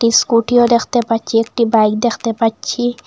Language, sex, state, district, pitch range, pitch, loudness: Bengali, female, Assam, Hailakandi, 225-240 Hz, 230 Hz, -15 LUFS